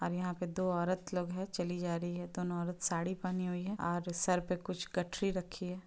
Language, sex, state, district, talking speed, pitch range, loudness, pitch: Hindi, female, Bihar, Gopalganj, 245 wpm, 175-185 Hz, -37 LUFS, 180 Hz